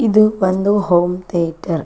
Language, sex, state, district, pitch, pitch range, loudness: Kannada, female, Karnataka, Chamarajanagar, 185 Hz, 175-205 Hz, -16 LUFS